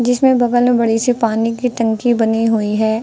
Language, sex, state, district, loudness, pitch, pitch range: Hindi, female, Uttar Pradesh, Lucknow, -15 LUFS, 230 Hz, 225-245 Hz